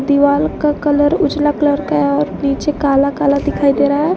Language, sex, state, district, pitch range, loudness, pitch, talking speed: Hindi, female, Jharkhand, Garhwa, 280-295 Hz, -14 LUFS, 290 Hz, 215 wpm